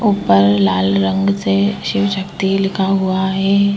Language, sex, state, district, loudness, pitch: Hindi, female, Uttar Pradesh, Etah, -15 LUFS, 190 Hz